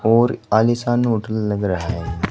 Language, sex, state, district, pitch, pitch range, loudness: Hindi, male, Haryana, Rohtak, 110 Hz, 100-120 Hz, -19 LUFS